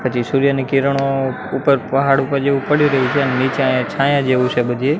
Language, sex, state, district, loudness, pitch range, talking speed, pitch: Gujarati, male, Gujarat, Gandhinagar, -16 LUFS, 130-140 Hz, 205 wpm, 135 Hz